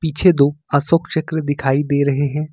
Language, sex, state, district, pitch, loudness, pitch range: Hindi, male, Jharkhand, Ranchi, 150 Hz, -17 LUFS, 140-160 Hz